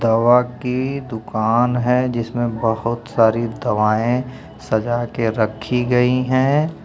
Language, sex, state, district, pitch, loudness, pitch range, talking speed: Hindi, male, Uttar Pradesh, Lucknow, 120 Hz, -19 LUFS, 115-125 Hz, 115 wpm